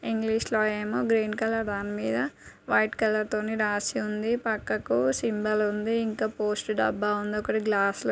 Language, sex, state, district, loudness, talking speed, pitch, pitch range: Telugu, female, Andhra Pradesh, Guntur, -27 LUFS, 155 wpm, 215 Hz, 210-220 Hz